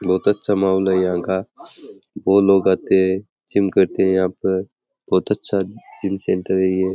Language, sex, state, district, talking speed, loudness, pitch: Rajasthani, male, Rajasthan, Churu, 180 wpm, -19 LUFS, 95 Hz